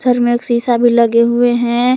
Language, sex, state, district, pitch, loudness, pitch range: Hindi, female, Jharkhand, Palamu, 240 Hz, -13 LUFS, 235-245 Hz